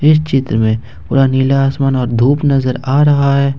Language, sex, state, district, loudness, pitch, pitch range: Hindi, male, Jharkhand, Ranchi, -13 LUFS, 135 Hz, 130-140 Hz